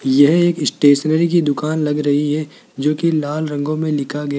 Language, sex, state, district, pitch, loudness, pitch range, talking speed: Hindi, male, Rajasthan, Jaipur, 150 Hz, -17 LUFS, 145-155 Hz, 205 wpm